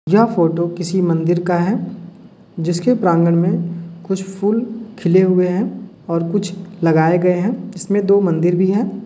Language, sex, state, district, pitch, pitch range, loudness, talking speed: Hindi, male, Uttar Pradesh, Hamirpur, 185 Hz, 175-205 Hz, -17 LUFS, 160 wpm